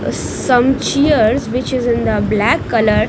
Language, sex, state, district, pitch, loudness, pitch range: English, female, Punjab, Kapurthala, 255 Hz, -15 LUFS, 245-270 Hz